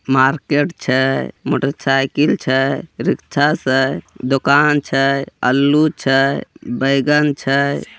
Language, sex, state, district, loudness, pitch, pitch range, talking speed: Hindi, male, Bihar, Begusarai, -16 LUFS, 135 Hz, 135-145 Hz, 90 wpm